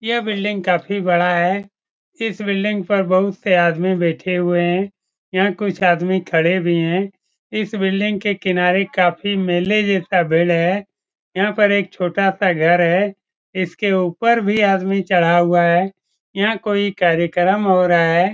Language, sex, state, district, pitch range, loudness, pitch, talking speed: Hindi, male, Bihar, Araria, 175-200 Hz, -17 LUFS, 190 Hz, 160 wpm